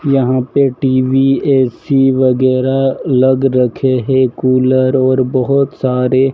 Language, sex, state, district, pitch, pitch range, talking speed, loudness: Hindi, male, Madhya Pradesh, Dhar, 130 Hz, 130-135 Hz, 115 wpm, -13 LUFS